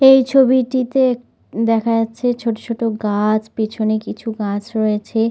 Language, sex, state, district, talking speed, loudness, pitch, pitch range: Bengali, female, West Bengal, North 24 Parganas, 125 wpm, -18 LUFS, 225 Hz, 215-245 Hz